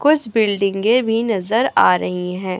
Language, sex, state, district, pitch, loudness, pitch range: Hindi, female, Chhattisgarh, Raipur, 210 Hz, -17 LUFS, 185-230 Hz